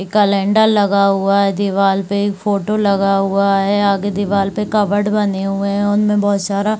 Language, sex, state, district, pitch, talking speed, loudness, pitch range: Hindi, female, Chhattisgarh, Bilaspur, 200 Hz, 185 wpm, -15 LUFS, 195-205 Hz